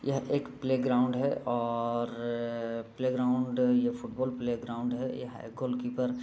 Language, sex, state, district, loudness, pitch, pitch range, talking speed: Hindi, male, Bihar, East Champaran, -31 LUFS, 125 Hz, 120-130 Hz, 145 wpm